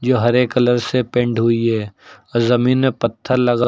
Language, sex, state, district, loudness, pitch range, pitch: Hindi, male, Uttar Pradesh, Lucknow, -17 LUFS, 115-125 Hz, 120 Hz